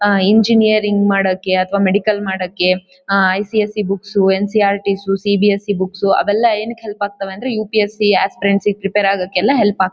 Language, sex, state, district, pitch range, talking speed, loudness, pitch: Kannada, female, Karnataka, Bellary, 195-210 Hz, 145 wpm, -15 LUFS, 200 Hz